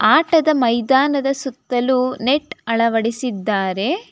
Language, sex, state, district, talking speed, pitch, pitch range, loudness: Kannada, female, Karnataka, Bangalore, 75 wpm, 255 Hz, 230-280 Hz, -18 LUFS